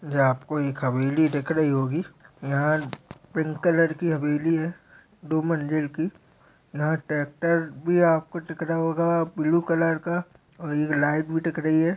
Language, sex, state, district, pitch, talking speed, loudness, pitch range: Hindi, male, Uttar Pradesh, Deoria, 160 Hz, 160 wpm, -25 LUFS, 150-165 Hz